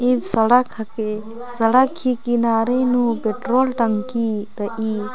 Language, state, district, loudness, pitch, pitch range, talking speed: Kurukh, Chhattisgarh, Jashpur, -19 LUFS, 230 Hz, 220-250 Hz, 130 wpm